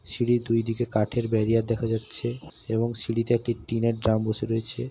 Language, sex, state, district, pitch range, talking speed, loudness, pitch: Bengali, male, West Bengal, Paschim Medinipur, 110-120 Hz, 170 wpm, -26 LUFS, 115 Hz